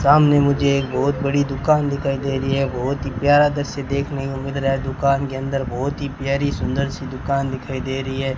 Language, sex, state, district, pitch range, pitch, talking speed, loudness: Hindi, male, Rajasthan, Bikaner, 135-140 Hz, 135 Hz, 235 wpm, -20 LUFS